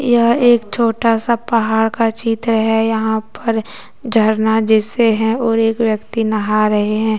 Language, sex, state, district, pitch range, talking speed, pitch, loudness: Hindi, female, Jharkhand, Deoghar, 220-230 Hz, 160 wpm, 225 Hz, -15 LUFS